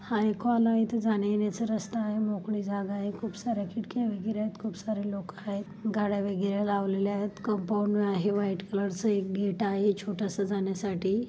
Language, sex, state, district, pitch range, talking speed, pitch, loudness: Marathi, female, Maharashtra, Solapur, 200-215 Hz, 165 wpm, 205 Hz, -30 LUFS